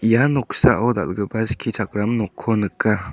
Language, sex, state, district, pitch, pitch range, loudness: Garo, male, Meghalaya, South Garo Hills, 110 Hz, 105-120 Hz, -20 LUFS